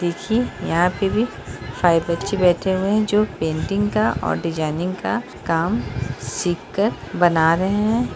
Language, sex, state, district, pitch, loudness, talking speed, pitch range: Hindi, male, Bihar, East Champaran, 175 Hz, -20 LUFS, 155 wpm, 165-205 Hz